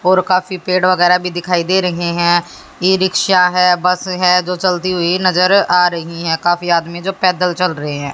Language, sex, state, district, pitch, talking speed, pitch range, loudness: Hindi, female, Haryana, Jhajjar, 180 Hz, 200 wpm, 175-185 Hz, -14 LUFS